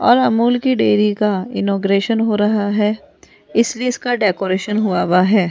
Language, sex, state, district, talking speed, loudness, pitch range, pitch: Hindi, female, Rajasthan, Jaipur, 165 wpm, -16 LUFS, 200-230 Hz, 210 Hz